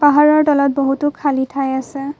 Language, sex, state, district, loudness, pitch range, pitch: Assamese, female, Assam, Kamrup Metropolitan, -16 LUFS, 270-290 Hz, 280 Hz